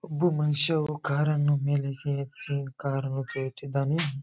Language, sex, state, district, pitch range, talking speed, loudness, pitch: Kannada, male, Karnataka, Bijapur, 140-150 Hz, 100 wpm, -28 LUFS, 145 Hz